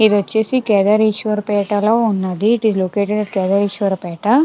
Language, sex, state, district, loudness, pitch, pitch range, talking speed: Telugu, female, Andhra Pradesh, Krishna, -16 LUFS, 210 Hz, 200-220 Hz, 95 wpm